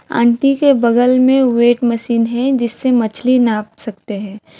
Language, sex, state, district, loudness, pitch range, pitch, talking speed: Hindi, female, West Bengal, Alipurduar, -14 LUFS, 225-255 Hz, 235 Hz, 155 wpm